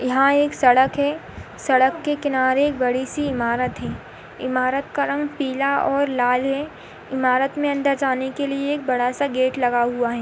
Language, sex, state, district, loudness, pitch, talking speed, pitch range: Hindi, female, Chhattisgarh, Jashpur, -21 LUFS, 265 Hz, 190 wpm, 255-285 Hz